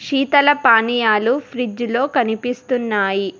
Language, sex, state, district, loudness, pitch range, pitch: Telugu, female, Telangana, Hyderabad, -17 LUFS, 220-265 Hz, 240 Hz